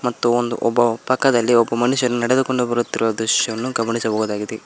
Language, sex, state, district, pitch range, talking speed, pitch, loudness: Kannada, male, Karnataka, Koppal, 115-125 Hz, 130 wpm, 120 Hz, -19 LUFS